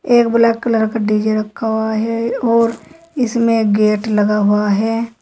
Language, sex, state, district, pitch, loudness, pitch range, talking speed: Hindi, female, Uttar Pradesh, Saharanpur, 225 Hz, -15 LUFS, 215-230 Hz, 160 wpm